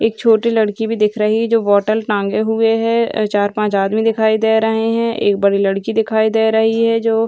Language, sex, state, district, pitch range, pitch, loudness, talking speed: Hindi, female, Bihar, Gaya, 210-225 Hz, 220 Hz, -15 LUFS, 220 wpm